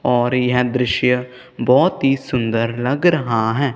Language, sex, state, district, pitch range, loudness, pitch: Hindi, male, Punjab, Kapurthala, 120-130 Hz, -17 LUFS, 125 Hz